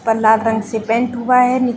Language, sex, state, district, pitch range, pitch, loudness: Hindi, female, Chhattisgarh, Balrampur, 225-250 Hz, 230 Hz, -15 LUFS